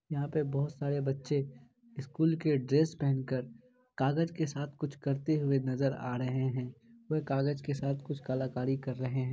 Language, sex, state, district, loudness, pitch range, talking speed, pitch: Hindi, male, Bihar, Kishanganj, -33 LUFS, 130-150 Hz, 185 wpm, 140 Hz